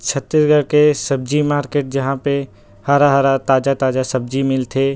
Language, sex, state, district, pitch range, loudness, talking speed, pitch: Chhattisgarhi, male, Chhattisgarh, Rajnandgaon, 135-145 Hz, -16 LUFS, 120 wpm, 135 Hz